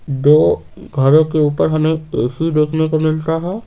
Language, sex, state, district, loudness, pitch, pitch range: Hindi, male, Bihar, Patna, -15 LUFS, 155 Hz, 150-160 Hz